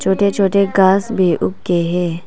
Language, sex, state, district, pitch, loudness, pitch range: Hindi, female, Arunachal Pradesh, Papum Pare, 190 Hz, -15 LUFS, 175-200 Hz